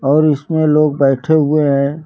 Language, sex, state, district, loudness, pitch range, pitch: Hindi, male, Uttar Pradesh, Lucknow, -13 LUFS, 140-155 Hz, 150 Hz